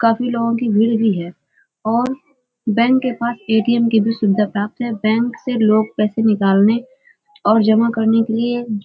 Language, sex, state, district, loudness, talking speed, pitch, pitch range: Hindi, female, Uttar Pradesh, Hamirpur, -17 LUFS, 185 wpm, 225 Hz, 215-240 Hz